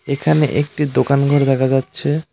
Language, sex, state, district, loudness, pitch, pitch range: Bengali, male, West Bengal, Cooch Behar, -16 LUFS, 140 Hz, 135-150 Hz